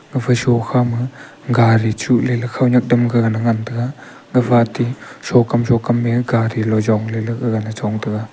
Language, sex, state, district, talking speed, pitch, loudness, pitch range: Wancho, male, Arunachal Pradesh, Longding, 160 wpm, 120 Hz, -17 LUFS, 115-125 Hz